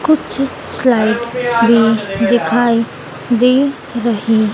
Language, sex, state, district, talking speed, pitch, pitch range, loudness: Hindi, female, Madhya Pradesh, Dhar, 80 wpm, 235 Hz, 220-250 Hz, -14 LUFS